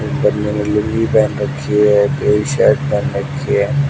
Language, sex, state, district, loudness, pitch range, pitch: Hindi, male, Haryana, Jhajjar, -15 LUFS, 105-140 Hz, 130 Hz